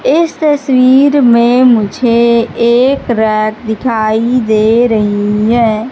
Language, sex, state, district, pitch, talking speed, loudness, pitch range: Hindi, female, Madhya Pradesh, Katni, 235 Hz, 100 wpm, -10 LUFS, 220-255 Hz